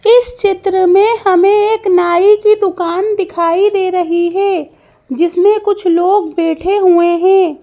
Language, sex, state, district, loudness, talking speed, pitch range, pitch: Hindi, female, Madhya Pradesh, Bhopal, -12 LUFS, 140 wpm, 345-405 Hz, 375 Hz